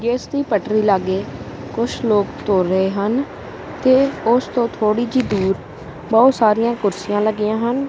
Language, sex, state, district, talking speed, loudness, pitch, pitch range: Punjabi, male, Punjab, Kapurthala, 150 wpm, -18 LUFS, 215 Hz, 200-240 Hz